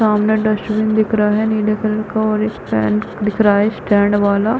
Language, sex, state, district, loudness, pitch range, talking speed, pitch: Hindi, female, Chhattisgarh, Raigarh, -16 LUFS, 205-215 Hz, 210 wpm, 215 Hz